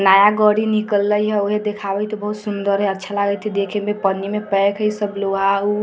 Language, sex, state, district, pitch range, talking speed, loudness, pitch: Hindi, female, Bihar, Vaishali, 200-210 Hz, 225 wpm, -19 LUFS, 205 Hz